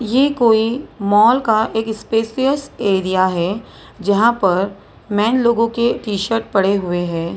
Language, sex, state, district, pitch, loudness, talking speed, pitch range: Hindi, female, Maharashtra, Mumbai Suburban, 220 Hz, -17 LUFS, 140 wpm, 195-235 Hz